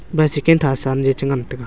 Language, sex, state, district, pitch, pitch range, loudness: Wancho, male, Arunachal Pradesh, Longding, 135 Hz, 135-150 Hz, -17 LUFS